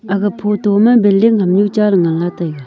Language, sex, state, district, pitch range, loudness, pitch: Wancho, female, Arunachal Pradesh, Longding, 180-210 Hz, -13 LUFS, 205 Hz